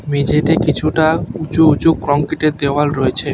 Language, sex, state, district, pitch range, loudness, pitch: Bengali, male, West Bengal, Alipurduar, 145-160 Hz, -15 LUFS, 150 Hz